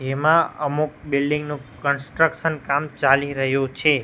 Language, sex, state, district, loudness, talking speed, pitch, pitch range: Gujarati, male, Gujarat, Gandhinagar, -21 LUFS, 135 wpm, 145 Hz, 140-150 Hz